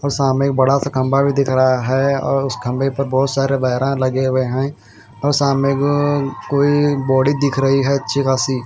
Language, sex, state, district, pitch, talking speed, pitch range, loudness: Hindi, male, Haryana, Jhajjar, 135 Hz, 200 wpm, 130-140 Hz, -17 LUFS